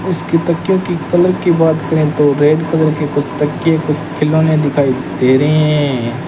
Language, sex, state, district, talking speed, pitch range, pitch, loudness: Hindi, male, Rajasthan, Bikaner, 180 wpm, 145-165 Hz, 155 Hz, -14 LUFS